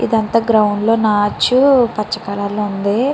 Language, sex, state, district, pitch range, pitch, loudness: Telugu, female, Andhra Pradesh, Chittoor, 205-230 Hz, 215 Hz, -15 LUFS